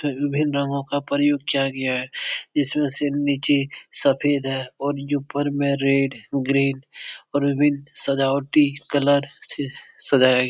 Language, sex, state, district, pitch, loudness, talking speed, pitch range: Hindi, male, Bihar, Supaul, 140 Hz, -22 LUFS, 145 wpm, 135-145 Hz